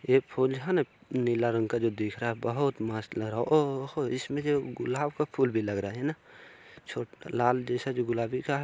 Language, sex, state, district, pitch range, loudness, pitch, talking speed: Hindi, male, Bihar, Bhagalpur, 115-140 Hz, -30 LUFS, 125 Hz, 235 wpm